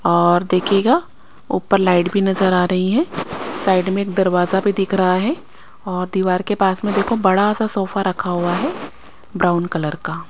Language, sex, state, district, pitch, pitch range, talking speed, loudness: Hindi, female, Chandigarh, Chandigarh, 190 Hz, 180-200 Hz, 185 wpm, -18 LUFS